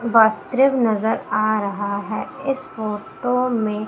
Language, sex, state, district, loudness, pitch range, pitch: Hindi, female, Madhya Pradesh, Umaria, -21 LUFS, 215-250 Hz, 220 Hz